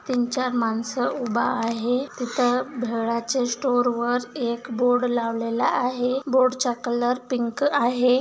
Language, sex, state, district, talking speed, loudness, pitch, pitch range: Marathi, female, Maharashtra, Solapur, 130 wpm, -23 LUFS, 245 Hz, 235-255 Hz